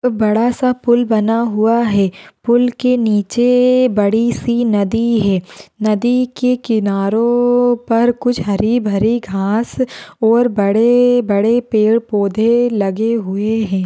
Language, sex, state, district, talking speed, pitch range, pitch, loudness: Hindi, female, Bihar, Saharsa, 120 wpm, 210-245 Hz, 230 Hz, -15 LUFS